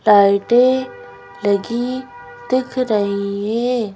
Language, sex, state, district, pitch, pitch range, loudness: Hindi, female, Madhya Pradesh, Bhopal, 210 Hz, 200-250 Hz, -18 LUFS